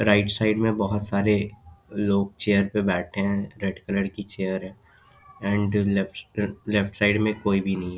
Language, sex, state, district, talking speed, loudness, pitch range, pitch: Hindi, male, Bihar, Darbhanga, 180 wpm, -25 LUFS, 100-105 Hz, 100 Hz